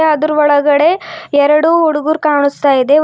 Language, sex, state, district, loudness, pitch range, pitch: Kannada, female, Karnataka, Bidar, -12 LUFS, 285-310 Hz, 300 Hz